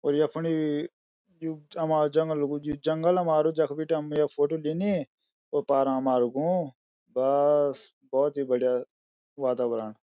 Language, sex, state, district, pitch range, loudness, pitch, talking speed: Garhwali, male, Uttarakhand, Uttarkashi, 135-160 Hz, -27 LUFS, 150 Hz, 150 wpm